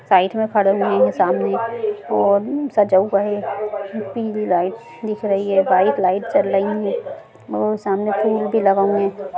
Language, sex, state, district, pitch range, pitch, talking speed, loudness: Hindi, female, Bihar, Jamui, 195-215 Hz, 205 Hz, 175 wpm, -19 LUFS